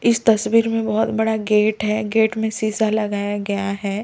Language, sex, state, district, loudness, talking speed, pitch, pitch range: Hindi, male, Delhi, New Delhi, -19 LUFS, 195 wpm, 215 Hz, 210-220 Hz